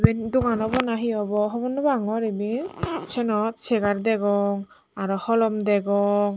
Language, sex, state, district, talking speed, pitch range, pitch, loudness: Chakma, female, Tripura, Dhalai, 150 wpm, 205-230 Hz, 220 Hz, -24 LUFS